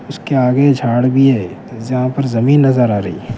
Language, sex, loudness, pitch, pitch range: Urdu, male, -14 LUFS, 130 Hz, 120-135 Hz